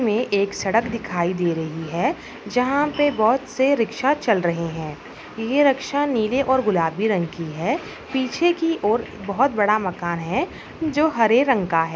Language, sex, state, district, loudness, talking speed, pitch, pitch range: Hindi, female, Bihar, Madhepura, -21 LUFS, 180 wpm, 220 Hz, 175-265 Hz